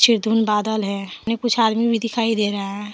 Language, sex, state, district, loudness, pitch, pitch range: Hindi, female, Jharkhand, Deoghar, -20 LUFS, 220 Hz, 210-230 Hz